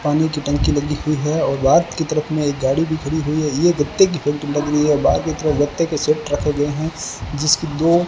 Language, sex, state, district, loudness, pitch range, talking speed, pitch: Hindi, male, Rajasthan, Bikaner, -18 LUFS, 145-160 Hz, 260 wpm, 150 Hz